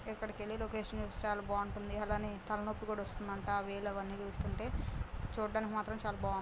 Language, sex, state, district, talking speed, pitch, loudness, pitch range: Telugu, female, Andhra Pradesh, Guntur, 175 wpm, 205 Hz, -40 LUFS, 195-215 Hz